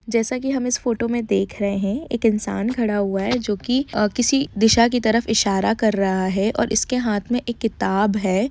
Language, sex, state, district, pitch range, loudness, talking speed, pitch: Hindi, female, Jharkhand, Jamtara, 205-240 Hz, -20 LUFS, 195 wpm, 225 Hz